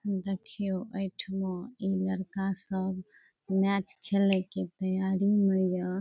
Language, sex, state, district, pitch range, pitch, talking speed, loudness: Maithili, female, Bihar, Saharsa, 190-195 Hz, 190 Hz, 130 wpm, -31 LUFS